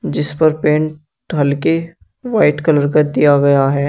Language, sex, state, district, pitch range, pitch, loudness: Hindi, male, Uttar Pradesh, Shamli, 140-155 Hz, 150 Hz, -15 LUFS